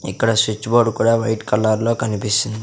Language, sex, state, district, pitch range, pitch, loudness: Telugu, male, Andhra Pradesh, Sri Satya Sai, 105-115 Hz, 110 Hz, -18 LUFS